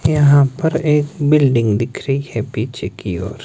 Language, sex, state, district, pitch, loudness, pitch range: Hindi, male, Himachal Pradesh, Shimla, 135 Hz, -16 LUFS, 110-150 Hz